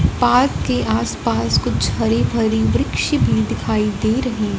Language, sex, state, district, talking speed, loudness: Hindi, female, Punjab, Fazilka, 145 wpm, -18 LUFS